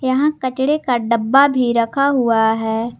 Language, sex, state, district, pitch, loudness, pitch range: Hindi, female, Jharkhand, Garhwa, 250 Hz, -16 LUFS, 230-275 Hz